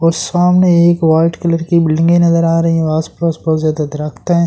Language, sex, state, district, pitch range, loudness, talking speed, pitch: Hindi, male, Delhi, New Delhi, 160-170 Hz, -13 LUFS, 215 wpm, 165 Hz